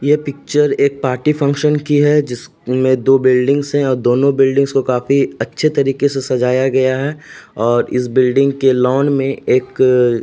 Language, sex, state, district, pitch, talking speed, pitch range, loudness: Hindi, male, Uttar Pradesh, Jalaun, 135 Hz, 165 wpm, 130-140 Hz, -14 LUFS